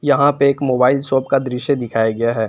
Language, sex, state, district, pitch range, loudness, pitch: Hindi, male, Jharkhand, Palamu, 120-140 Hz, -16 LUFS, 130 Hz